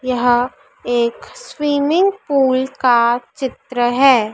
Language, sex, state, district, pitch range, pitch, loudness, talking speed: Hindi, female, Madhya Pradesh, Dhar, 240-275 Hz, 255 Hz, -16 LUFS, 95 wpm